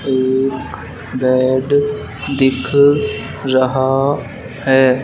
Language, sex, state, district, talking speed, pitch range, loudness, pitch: Hindi, male, Madhya Pradesh, Dhar, 60 wpm, 130-140 Hz, -16 LUFS, 130 Hz